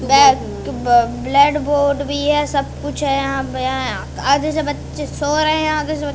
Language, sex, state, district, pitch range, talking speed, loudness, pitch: Hindi, female, Madhya Pradesh, Katni, 275-305 Hz, 165 wpm, -17 LUFS, 290 Hz